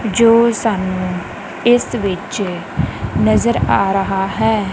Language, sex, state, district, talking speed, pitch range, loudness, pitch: Punjabi, female, Punjab, Kapurthala, 100 wpm, 170-220 Hz, -16 LUFS, 195 Hz